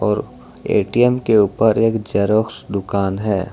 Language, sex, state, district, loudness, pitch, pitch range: Hindi, male, Jharkhand, Ranchi, -17 LUFS, 105 Hz, 100-115 Hz